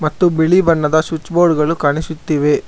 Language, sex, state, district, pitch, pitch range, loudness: Kannada, male, Karnataka, Bangalore, 160 Hz, 155-170 Hz, -15 LUFS